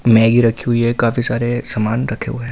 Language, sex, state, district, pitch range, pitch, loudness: Hindi, male, Delhi, New Delhi, 115-120 Hz, 120 Hz, -16 LUFS